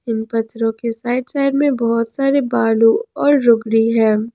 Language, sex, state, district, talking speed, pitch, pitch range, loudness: Hindi, female, Jharkhand, Ranchi, 165 wpm, 230 Hz, 225-265 Hz, -16 LUFS